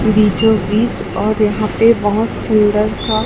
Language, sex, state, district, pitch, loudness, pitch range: Hindi, male, Chhattisgarh, Raipur, 215 Hz, -14 LUFS, 210-220 Hz